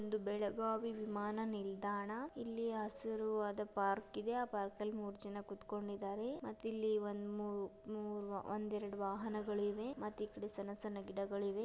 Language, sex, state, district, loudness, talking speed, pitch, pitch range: Kannada, female, Karnataka, Dharwad, -43 LUFS, 145 wpm, 210 Hz, 205-215 Hz